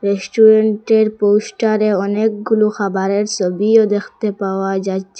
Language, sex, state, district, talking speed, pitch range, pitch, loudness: Bengali, female, Assam, Hailakandi, 90 wpm, 195-215 Hz, 210 Hz, -15 LUFS